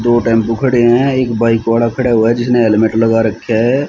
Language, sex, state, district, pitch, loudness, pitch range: Hindi, male, Haryana, Rohtak, 115 Hz, -12 LUFS, 115-120 Hz